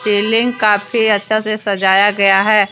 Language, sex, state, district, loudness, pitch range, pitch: Hindi, female, Jharkhand, Deoghar, -13 LUFS, 200-215 Hz, 210 Hz